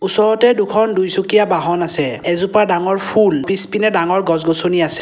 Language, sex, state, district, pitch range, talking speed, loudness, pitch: Assamese, male, Assam, Kamrup Metropolitan, 170-210 Hz, 145 wpm, -15 LUFS, 190 Hz